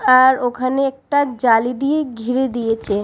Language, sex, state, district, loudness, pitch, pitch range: Bengali, female, West Bengal, Purulia, -17 LUFS, 255 Hz, 235-270 Hz